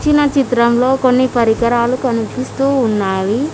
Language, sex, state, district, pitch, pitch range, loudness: Telugu, female, Telangana, Mahabubabad, 250 Hz, 235-265 Hz, -14 LUFS